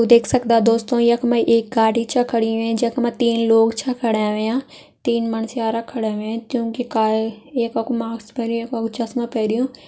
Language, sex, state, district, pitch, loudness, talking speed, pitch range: Garhwali, female, Uttarakhand, Tehri Garhwal, 230 Hz, -20 LUFS, 200 wpm, 225-240 Hz